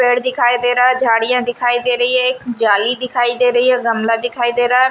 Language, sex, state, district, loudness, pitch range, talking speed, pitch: Hindi, female, Maharashtra, Washim, -14 LUFS, 240-250 Hz, 255 wpm, 245 Hz